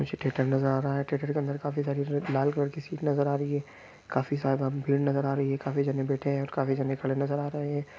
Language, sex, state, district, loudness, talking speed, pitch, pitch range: Hindi, male, Andhra Pradesh, Visakhapatnam, -29 LUFS, 270 wpm, 140 Hz, 135-145 Hz